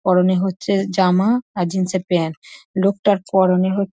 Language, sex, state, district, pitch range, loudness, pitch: Bengali, female, West Bengal, North 24 Parganas, 185-195 Hz, -18 LUFS, 190 Hz